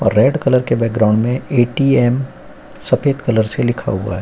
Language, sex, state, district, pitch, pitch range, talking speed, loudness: Hindi, male, Uttar Pradesh, Jyotiba Phule Nagar, 120 Hz, 110-135 Hz, 185 wpm, -16 LUFS